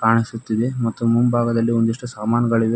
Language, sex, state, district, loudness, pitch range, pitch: Kannada, male, Karnataka, Koppal, -20 LUFS, 115-120 Hz, 115 Hz